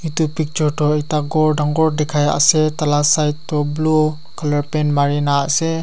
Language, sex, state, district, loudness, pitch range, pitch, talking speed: Nagamese, male, Nagaland, Kohima, -17 LUFS, 150-155 Hz, 150 Hz, 165 wpm